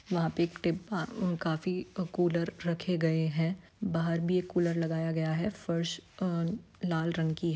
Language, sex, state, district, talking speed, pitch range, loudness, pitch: Hindi, female, Bihar, Saran, 180 wpm, 165-180 Hz, -32 LUFS, 170 Hz